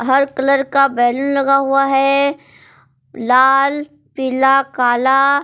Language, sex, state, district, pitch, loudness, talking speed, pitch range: Hindi, female, Jharkhand, Palamu, 270 Hz, -14 LUFS, 110 wpm, 255-275 Hz